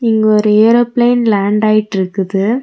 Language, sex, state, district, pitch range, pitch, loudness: Tamil, female, Tamil Nadu, Nilgiris, 205-230 Hz, 215 Hz, -12 LUFS